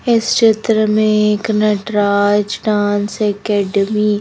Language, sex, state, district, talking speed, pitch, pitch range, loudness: Hindi, female, Madhya Pradesh, Bhopal, 115 wpm, 210 Hz, 205-215 Hz, -15 LUFS